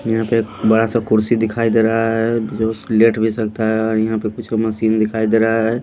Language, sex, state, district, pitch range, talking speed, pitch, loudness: Hindi, male, Haryana, Charkhi Dadri, 110-115 Hz, 245 wpm, 110 Hz, -17 LUFS